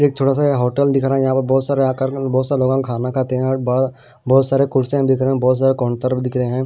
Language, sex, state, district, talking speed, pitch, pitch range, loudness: Hindi, male, Punjab, Pathankot, 260 wpm, 130 Hz, 130-135 Hz, -17 LUFS